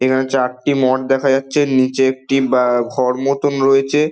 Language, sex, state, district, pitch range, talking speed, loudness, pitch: Bengali, male, West Bengal, Dakshin Dinajpur, 130-135 Hz, 175 wpm, -16 LUFS, 135 Hz